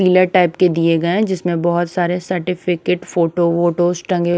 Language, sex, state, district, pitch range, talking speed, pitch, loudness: Hindi, female, Himachal Pradesh, Shimla, 170-180 Hz, 180 wpm, 175 Hz, -16 LUFS